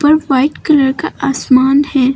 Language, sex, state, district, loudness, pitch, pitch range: Hindi, female, Uttar Pradesh, Lucknow, -12 LUFS, 275 Hz, 265-290 Hz